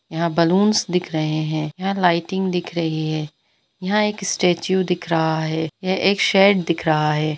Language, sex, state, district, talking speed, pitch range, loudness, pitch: Hindi, female, Bihar, Gaya, 180 wpm, 160-190 Hz, -20 LUFS, 170 Hz